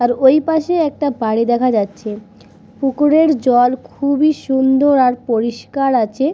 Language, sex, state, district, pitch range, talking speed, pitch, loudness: Bengali, female, West Bengal, Purulia, 235-285 Hz, 130 wpm, 260 Hz, -15 LUFS